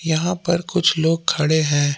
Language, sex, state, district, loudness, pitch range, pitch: Hindi, male, Jharkhand, Palamu, -19 LUFS, 155-170 Hz, 165 Hz